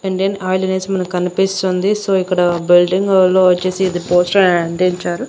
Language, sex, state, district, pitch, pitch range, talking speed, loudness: Telugu, female, Andhra Pradesh, Annamaya, 185 Hz, 180-190 Hz, 160 wpm, -15 LUFS